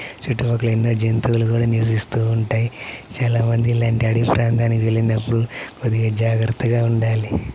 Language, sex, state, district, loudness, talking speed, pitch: Telugu, male, Andhra Pradesh, Chittoor, -19 LUFS, 125 wpm, 115 Hz